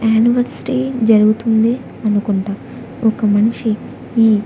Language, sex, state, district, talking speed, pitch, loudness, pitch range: Telugu, female, Andhra Pradesh, Annamaya, 80 wpm, 220 Hz, -16 LUFS, 215-235 Hz